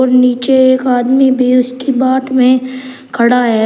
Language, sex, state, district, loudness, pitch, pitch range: Hindi, male, Uttar Pradesh, Shamli, -11 LUFS, 255 Hz, 250-260 Hz